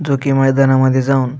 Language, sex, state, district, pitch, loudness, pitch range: Marathi, male, Maharashtra, Aurangabad, 135 Hz, -13 LUFS, 130-135 Hz